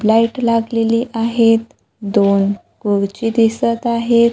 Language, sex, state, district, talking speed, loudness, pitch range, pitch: Marathi, female, Maharashtra, Gondia, 95 wpm, -16 LUFS, 215-230 Hz, 230 Hz